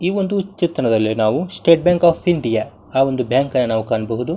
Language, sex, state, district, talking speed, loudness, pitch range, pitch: Kannada, male, Karnataka, Bijapur, 190 wpm, -17 LUFS, 110-175 Hz, 135 Hz